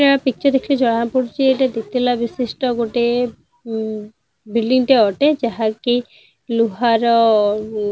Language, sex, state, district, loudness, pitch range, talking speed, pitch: Odia, female, Odisha, Nuapada, -18 LUFS, 225-255 Hz, 120 wpm, 235 Hz